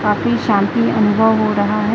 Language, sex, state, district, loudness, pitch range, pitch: Hindi, female, Chhattisgarh, Raipur, -15 LUFS, 205-220 Hz, 210 Hz